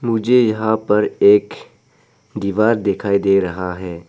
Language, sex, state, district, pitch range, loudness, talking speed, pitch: Hindi, male, Arunachal Pradesh, Papum Pare, 100-115 Hz, -16 LUFS, 130 wpm, 105 Hz